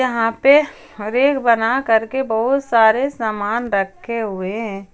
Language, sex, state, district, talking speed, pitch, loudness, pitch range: Hindi, female, Jharkhand, Ranchi, 135 wpm, 230 Hz, -17 LUFS, 215-260 Hz